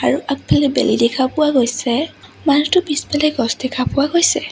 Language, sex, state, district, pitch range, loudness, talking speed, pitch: Assamese, female, Assam, Sonitpur, 260-300 Hz, -16 LUFS, 160 wpm, 280 Hz